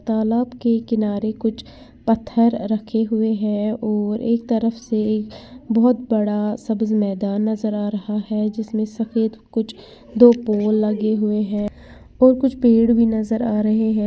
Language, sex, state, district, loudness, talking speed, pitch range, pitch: Hindi, female, Uttar Pradesh, Lalitpur, -19 LUFS, 155 wpm, 215-230 Hz, 220 Hz